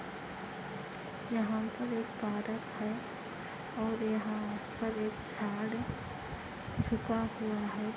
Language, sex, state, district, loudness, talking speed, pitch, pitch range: Hindi, female, Andhra Pradesh, Anantapur, -37 LUFS, 115 wpm, 220 Hz, 210-225 Hz